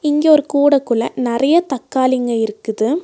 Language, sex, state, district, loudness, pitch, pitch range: Tamil, female, Tamil Nadu, Nilgiris, -16 LUFS, 260 Hz, 235-295 Hz